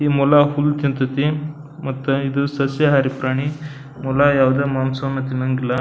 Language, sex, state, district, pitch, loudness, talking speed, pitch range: Kannada, male, Karnataka, Belgaum, 140 Hz, -19 LUFS, 135 wpm, 130-145 Hz